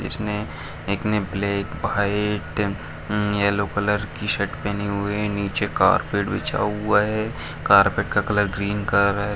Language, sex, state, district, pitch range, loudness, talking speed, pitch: Hindi, male, Bihar, Bhagalpur, 100-105 Hz, -22 LUFS, 160 wpm, 100 Hz